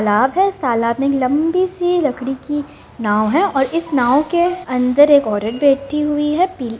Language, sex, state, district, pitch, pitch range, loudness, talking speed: Hindi, female, Bihar, Jamui, 280 Hz, 250-325 Hz, -16 LUFS, 210 wpm